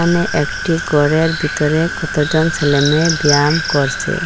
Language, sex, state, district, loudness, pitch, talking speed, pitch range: Bengali, female, Assam, Hailakandi, -15 LUFS, 155 Hz, 115 wpm, 150-165 Hz